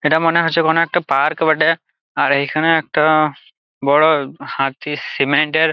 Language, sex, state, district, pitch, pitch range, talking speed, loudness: Bengali, male, West Bengal, Jalpaiguri, 155 Hz, 145-165 Hz, 145 wpm, -16 LUFS